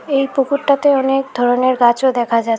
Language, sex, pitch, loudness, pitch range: Bengali, female, 265 Hz, -15 LUFS, 245-275 Hz